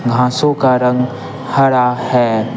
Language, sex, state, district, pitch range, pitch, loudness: Hindi, male, Bihar, Patna, 125-130 Hz, 125 Hz, -14 LUFS